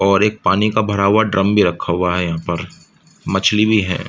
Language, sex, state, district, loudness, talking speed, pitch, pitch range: Hindi, male, Uttar Pradesh, Budaun, -16 LUFS, 235 wpm, 100 Hz, 95-105 Hz